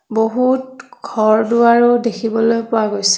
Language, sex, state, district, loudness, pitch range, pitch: Assamese, female, Assam, Kamrup Metropolitan, -15 LUFS, 220-240 Hz, 230 Hz